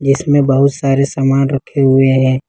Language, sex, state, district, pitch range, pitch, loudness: Hindi, male, Jharkhand, Ranchi, 135-140 Hz, 135 Hz, -13 LUFS